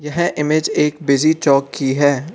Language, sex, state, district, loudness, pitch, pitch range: Hindi, male, Arunachal Pradesh, Lower Dibang Valley, -16 LUFS, 150 Hz, 140-155 Hz